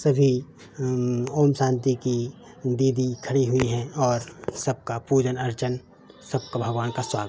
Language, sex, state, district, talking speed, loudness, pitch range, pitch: Hindi, male, Uttar Pradesh, Hamirpur, 150 wpm, -25 LUFS, 125-135 Hz, 125 Hz